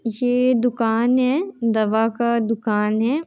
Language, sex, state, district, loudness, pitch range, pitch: Hindi, female, Bihar, Muzaffarpur, -20 LUFS, 225-250 Hz, 235 Hz